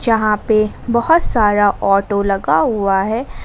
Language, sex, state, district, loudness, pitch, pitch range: Hindi, female, Jharkhand, Ranchi, -15 LUFS, 210 Hz, 200-225 Hz